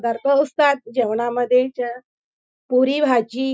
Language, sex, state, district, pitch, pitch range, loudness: Marathi, female, Maharashtra, Chandrapur, 255 Hz, 240-275 Hz, -19 LUFS